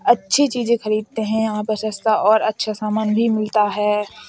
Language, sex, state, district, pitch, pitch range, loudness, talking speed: Hindi, female, Uttar Pradesh, Hamirpur, 215 Hz, 210-220 Hz, -19 LUFS, 180 wpm